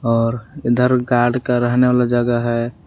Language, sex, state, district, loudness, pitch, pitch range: Hindi, male, Jharkhand, Palamu, -17 LUFS, 120 Hz, 120-125 Hz